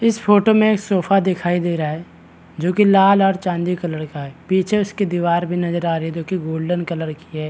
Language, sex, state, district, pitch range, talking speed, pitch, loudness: Hindi, male, Bihar, Madhepura, 160-195 Hz, 255 wpm, 175 Hz, -18 LUFS